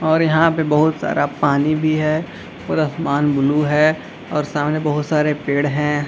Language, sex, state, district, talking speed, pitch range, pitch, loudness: Hindi, male, Bihar, Gaya, 185 wpm, 145-155 Hz, 150 Hz, -18 LUFS